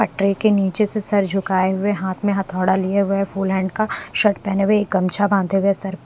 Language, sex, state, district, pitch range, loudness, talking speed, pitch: Hindi, female, Haryana, Rohtak, 190-205 Hz, -19 LUFS, 240 wpm, 195 Hz